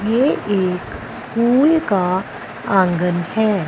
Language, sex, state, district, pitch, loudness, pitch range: Hindi, female, Punjab, Fazilka, 200 Hz, -18 LUFS, 180-230 Hz